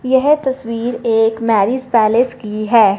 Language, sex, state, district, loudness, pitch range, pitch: Hindi, female, Punjab, Fazilka, -15 LUFS, 225-255 Hz, 230 Hz